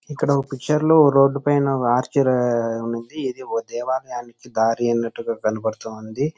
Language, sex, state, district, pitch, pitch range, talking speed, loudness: Telugu, male, Andhra Pradesh, Chittoor, 125 Hz, 115-140 Hz, 140 wpm, -20 LUFS